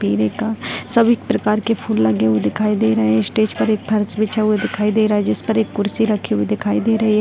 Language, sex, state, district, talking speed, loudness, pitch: Hindi, female, Bihar, Darbhanga, 260 wpm, -17 LUFS, 210 Hz